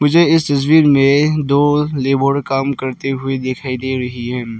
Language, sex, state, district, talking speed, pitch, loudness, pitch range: Hindi, male, Arunachal Pradesh, Lower Dibang Valley, 170 wpm, 135 Hz, -15 LUFS, 130-145 Hz